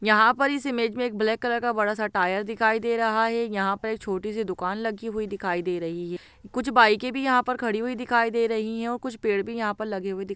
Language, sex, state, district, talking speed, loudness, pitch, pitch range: Hindi, female, Bihar, Begusarai, 280 wpm, -25 LUFS, 220 Hz, 200-235 Hz